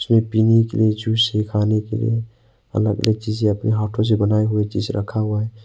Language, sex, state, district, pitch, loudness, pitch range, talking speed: Hindi, male, Arunachal Pradesh, Papum Pare, 110 Hz, -19 LUFS, 105-110 Hz, 225 wpm